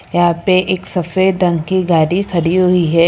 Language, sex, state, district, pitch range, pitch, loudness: Hindi, female, Karnataka, Bangalore, 170-185 Hz, 180 Hz, -14 LUFS